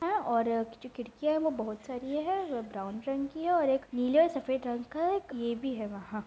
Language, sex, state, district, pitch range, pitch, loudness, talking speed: Hindi, female, Bihar, Jamui, 230-305 Hz, 260 Hz, -32 LUFS, 260 wpm